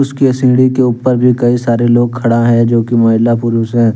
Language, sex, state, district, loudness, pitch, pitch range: Hindi, male, Jharkhand, Deoghar, -11 LUFS, 120 Hz, 115-125 Hz